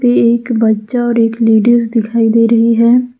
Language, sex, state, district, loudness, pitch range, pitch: Hindi, female, Jharkhand, Ranchi, -11 LUFS, 225-240 Hz, 230 Hz